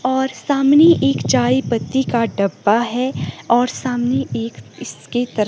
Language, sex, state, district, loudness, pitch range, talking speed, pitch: Hindi, female, Himachal Pradesh, Shimla, -17 LUFS, 205-260 Hz, 130 wpm, 240 Hz